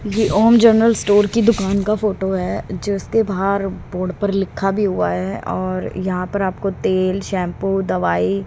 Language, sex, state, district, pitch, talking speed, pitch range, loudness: Hindi, female, Haryana, Rohtak, 195 Hz, 170 wpm, 185-205 Hz, -18 LUFS